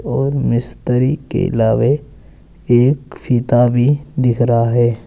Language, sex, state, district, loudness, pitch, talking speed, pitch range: Hindi, male, Uttar Pradesh, Saharanpur, -15 LUFS, 125 Hz, 120 wpm, 120-140 Hz